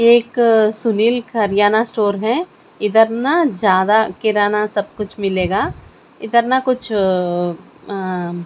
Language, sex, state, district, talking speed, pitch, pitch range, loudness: Hindi, female, Chandigarh, Chandigarh, 130 wpm, 215 Hz, 195-235 Hz, -16 LUFS